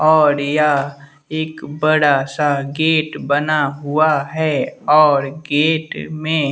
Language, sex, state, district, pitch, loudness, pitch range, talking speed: Hindi, male, Bihar, West Champaran, 150 Hz, -17 LUFS, 145-155 Hz, 110 wpm